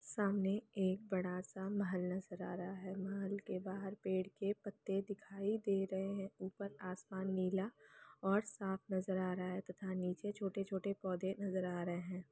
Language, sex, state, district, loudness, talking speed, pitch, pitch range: Hindi, female, Uttar Pradesh, Jalaun, -42 LUFS, 195 wpm, 190 Hz, 185-200 Hz